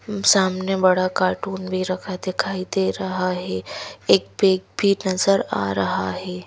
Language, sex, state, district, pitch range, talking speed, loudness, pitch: Hindi, female, Himachal Pradesh, Shimla, 185-195 Hz, 150 wpm, -21 LUFS, 185 Hz